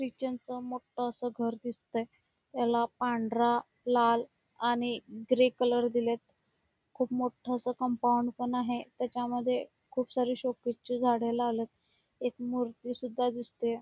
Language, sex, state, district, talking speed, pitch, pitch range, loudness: Marathi, female, Karnataka, Belgaum, 130 wpm, 245 Hz, 235-250 Hz, -32 LUFS